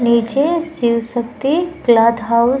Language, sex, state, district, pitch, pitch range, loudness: Hindi, female, Uttar Pradesh, Muzaffarnagar, 235 Hz, 235-280 Hz, -16 LUFS